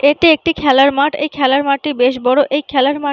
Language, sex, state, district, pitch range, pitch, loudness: Bengali, female, West Bengal, North 24 Parganas, 270-295 Hz, 285 Hz, -14 LUFS